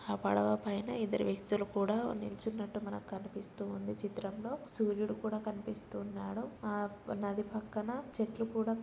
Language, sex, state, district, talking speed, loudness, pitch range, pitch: Telugu, female, Telangana, Nalgonda, 145 wpm, -38 LUFS, 195-220 Hz, 205 Hz